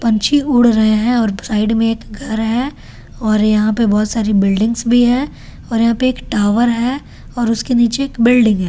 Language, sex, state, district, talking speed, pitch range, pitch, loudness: Hindi, female, Delhi, New Delhi, 185 wpm, 215-245 Hz, 230 Hz, -15 LUFS